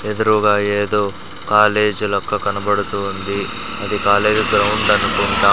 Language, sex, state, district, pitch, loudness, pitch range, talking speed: Telugu, male, Andhra Pradesh, Sri Satya Sai, 105 Hz, -16 LUFS, 100-105 Hz, 120 wpm